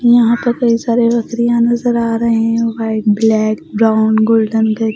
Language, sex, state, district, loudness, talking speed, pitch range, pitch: Hindi, female, Bihar, West Champaran, -13 LUFS, 155 wpm, 220-235 Hz, 230 Hz